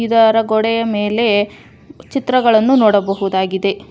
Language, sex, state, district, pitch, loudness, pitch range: Kannada, female, Karnataka, Bangalore, 220 Hz, -15 LUFS, 205-230 Hz